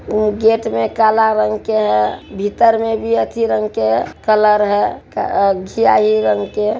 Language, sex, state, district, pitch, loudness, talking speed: Hindi, male, Bihar, Araria, 210 Hz, -15 LUFS, 170 wpm